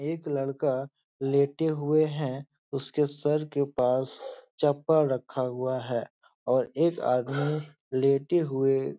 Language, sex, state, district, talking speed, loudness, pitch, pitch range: Hindi, male, Uttar Pradesh, Etah, 125 wpm, -28 LUFS, 140 Hz, 130-150 Hz